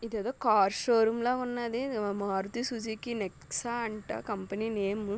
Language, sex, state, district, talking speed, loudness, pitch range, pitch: Telugu, female, Telangana, Nalgonda, 115 wpm, -31 LUFS, 205-240 Hz, 220 Hz